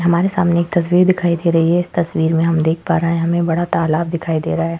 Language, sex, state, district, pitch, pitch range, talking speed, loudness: Hindi, female, Uttar Pradesh, Etah, 170 Hz, 165-175 Hz, 290 wpm, -16 LUFS